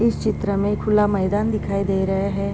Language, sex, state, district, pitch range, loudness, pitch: Hindi, female, Uttar Pradesh, Deoria, 195-210 Hz, -21 LUFS, 200 Hz